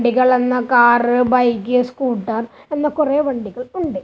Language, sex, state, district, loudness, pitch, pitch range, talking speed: Malayalam, male, Kerala, Kasaragod, -17 LUFS, 250 Hz, 240-275 Hz, 135 wpm